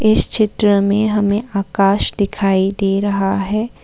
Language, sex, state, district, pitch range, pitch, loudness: Hindi, female, Assam, Kamrup Metropolitan, 195-210 Hz, 200 Hz, -16 LUFS